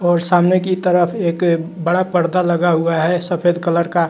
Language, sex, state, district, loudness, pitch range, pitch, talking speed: Hindi, male, Bihar, West Champaran, -16 LUFS, 170-180 Hz, 175 Hz, 190 wpm